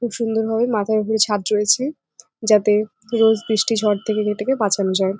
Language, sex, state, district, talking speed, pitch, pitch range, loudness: Bengali, female, West Bengal, Jalpaiguri, 175 wpm, 215 Hz, 210-225 Hz, -19 LUFS